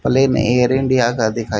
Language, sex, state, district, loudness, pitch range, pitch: Hindi, male, Haryana, Jhajjar, -16 LUFS, 115-130 Hz, 125 Hz